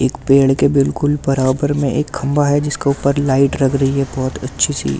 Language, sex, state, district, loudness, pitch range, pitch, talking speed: Hindi, male, Delhi, New Delhi, -16 LUFS, 135-145 Hz, 135 Hz, 240 wpm